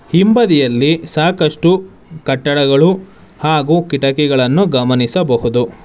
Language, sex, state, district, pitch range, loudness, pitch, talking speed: Kannada, male, Karnataka, Bangalore, 135-175 Hz, -13 LUFS, 150 Hz, 60 wpm